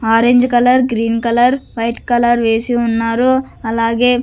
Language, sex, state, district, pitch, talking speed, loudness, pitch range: Telugu, female, Andhra Pradesh, Sri Satya Sai, 240 Hz, 130 wpm, -14 LUFS, 230-245 Hz